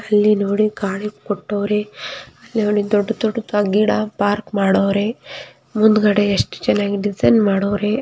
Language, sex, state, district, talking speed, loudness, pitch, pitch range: Kannada, female, Karnataka, Mysore, 120 wpm, -18 LUFS, 210 Hz, 205-215 Hz